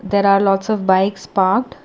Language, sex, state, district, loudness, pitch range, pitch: English, female, Karnataka, Bangalore, -16 LUFS, 190-205 Hz, 195 Hz